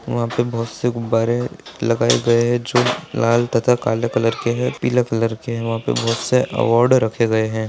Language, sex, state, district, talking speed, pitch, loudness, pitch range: Hindi, male, Rajasthan, Churu, 210 wpm, 115 Hz, -19 LUFS, 115-120 Hz